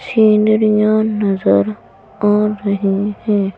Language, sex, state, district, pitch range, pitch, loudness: Hindi, female, Madhya Pradesh, Bhopal, 200-215 Hz, 210 Hz, -15 LUFS